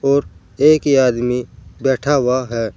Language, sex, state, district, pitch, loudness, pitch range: Hindi, male, Uttar Pradesh, Saharanpur, 125 Hz, -16 LUFS, 115-140 Hz